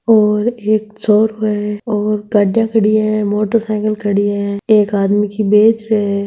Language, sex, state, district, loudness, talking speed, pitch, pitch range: Marwari, female, Rajasthan, Nagaur, -14 LUFS, 165 wpm, 210 Hz, 205-215 Hz